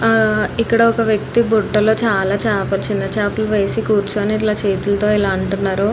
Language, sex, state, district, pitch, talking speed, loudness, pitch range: Telugu, female, Andhra Pradesh, Anantapur, 210 Hz, 130 wpm, -16 LUFS, 200-220 Hz